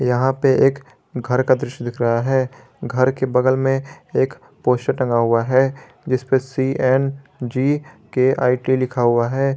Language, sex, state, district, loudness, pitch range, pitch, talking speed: Hindi, male, Jharkhand, Garhwa, -19 LUFS, 125-135 Hz, 130 Hz, 150 wpm